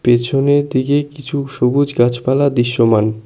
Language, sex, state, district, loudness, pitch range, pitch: Bengali, male, West Bengal, Cooch Behar, -15 LUFS, 120-145 Hz, 135 Hz